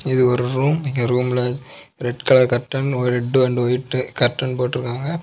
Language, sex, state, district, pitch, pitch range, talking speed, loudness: Tamil, male, Tamil Nadu, Kanyakumari, 125 Hz, 125-130 Hz, 150 wpm, -19 LUFS